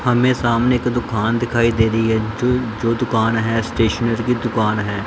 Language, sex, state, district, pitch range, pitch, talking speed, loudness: Hindi, male, Punjab, Pathankot, 110-120 Hz, 115 Hz, 190 wpm, -18 LUFS